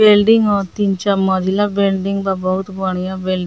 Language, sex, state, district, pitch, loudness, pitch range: Bhojpuri, female, Bihar, Muzaffarpur, 195 Hz, -16 LUFS, 190-205 Hz